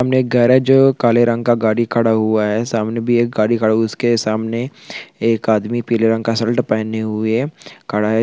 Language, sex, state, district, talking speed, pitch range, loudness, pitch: Hindi, male, Bihar, Supaul, 205 wpm, 110-120 Hz, -16 LUFS, 115 Hz